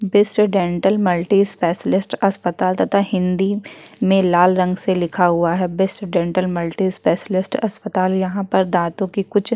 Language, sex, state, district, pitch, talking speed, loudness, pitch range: Hindi, female, Uttarakhand, Tehri Garhwal, 190 Hz, 155 wpm, -18 LUFS, 180-200 Hz